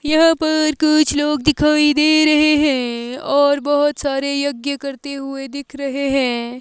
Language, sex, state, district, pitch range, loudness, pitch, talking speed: Hindi, female, Himachal Pradesh, Shimla, 275-300 Hz, -17 LUFS, 285 Hz, 155 wpm